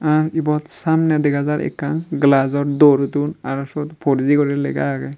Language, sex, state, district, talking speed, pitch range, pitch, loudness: Chakma, male, Tripura, Dhalai, 185 wpm, 140-150 Hz, 145 Hz, -18 LUFS